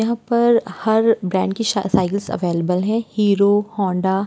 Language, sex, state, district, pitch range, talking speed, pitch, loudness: Hindi, female, Uttar Pradesh, Jyotiba Phule Nagar, 190-225 Hz, 155 wpm, 200 Hz, -18 LUFS